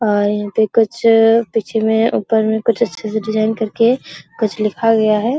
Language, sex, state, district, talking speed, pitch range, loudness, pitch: Hindi, female, Bihar, Araria, 180 wpm, 215-230 Hz, -16 LUFS, 220 Hz